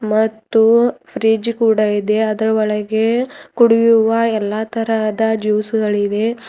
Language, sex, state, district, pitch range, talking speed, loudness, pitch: Kannada, female, Karnataka, Bidar, 215-230 Hz, 100 wpm, -16 LUFS, 220 Hz